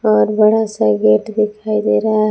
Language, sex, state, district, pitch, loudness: Hindi, female, Jharkhand, Palamu, 210 Hz, -15 LUFS